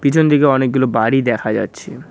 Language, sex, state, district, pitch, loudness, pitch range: Bengali, male, West Bengal, Cooch Behar, 130 Hz, -15 LUFS, 120-140 Hz